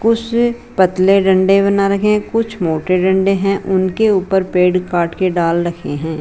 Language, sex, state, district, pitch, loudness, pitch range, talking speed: Hindi, female, Rajasthan, Jaipur, 190 Hz, -15 LUFS, 180-200 Hz, 175 wpm